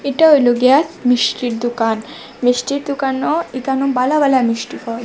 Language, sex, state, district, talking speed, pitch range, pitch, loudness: Bengali, female, Assam, Hailakandi, 145 wpm, 240-280 Hz, 260 Hz, -16 LUFS